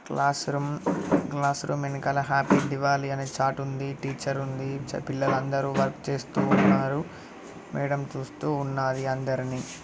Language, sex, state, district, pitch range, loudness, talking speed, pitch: Telugu, male, Telangana, Karimnagar, 135-140 Hz, -27 LUFS, 140 wpm, 140 Hz